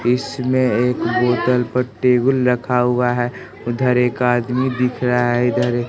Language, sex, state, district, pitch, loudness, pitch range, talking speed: Hindi, male, Bihar, West Champaran, 125 Hz, -18 LUFS, 120-125 Hz, 165 wpm